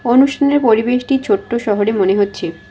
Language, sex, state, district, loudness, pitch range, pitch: Bengali, female, West Bengal, Alipurduar, -15 LUFS, 205-265 Hz, 235 Hz